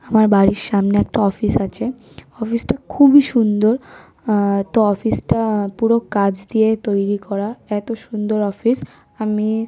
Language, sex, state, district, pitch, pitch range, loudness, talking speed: Bengali, female, West Bengal, North 24 Parganas, 215 Hz, 205-230 Hz, -17 LUFS, 125 wpm